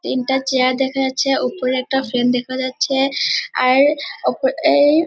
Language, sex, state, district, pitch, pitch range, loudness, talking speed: Bengali, male, West Bengal, Dakshin Dinajpur, 265 Hz, 255-275 Hz, -17 LUFS, 130 wpm